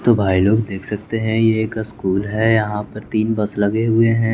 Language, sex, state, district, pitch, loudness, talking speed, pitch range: Hindi, male, Bihar, West Champaran, 110 Hz, -18 LUFS, 235 wpm, 105-110 Hz